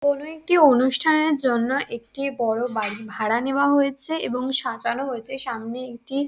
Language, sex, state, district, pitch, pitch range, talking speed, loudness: Bengali, female, West Bengal, Dakshin Dinajpur, 265 Hz, 235-285 Hz, 155 wpm, -22 LUFS